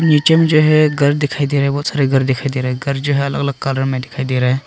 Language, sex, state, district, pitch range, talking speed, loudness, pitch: Hindi, male, Arunachal Pradesh, Longding, 135-145 Hz, 335 wpm, -15 LUFS, 140 Hz